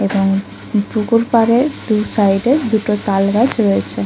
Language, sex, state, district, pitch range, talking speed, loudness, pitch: Bengali, female, West Bengal, Kolkata, 195-230 Hz, 150 wpm, -15 LUFS, 210 Hz